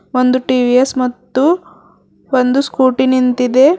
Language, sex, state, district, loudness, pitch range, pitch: Kannada, female, Karnataka, Bidar, -13 LUFS, 250-265 Hz, 255 Hz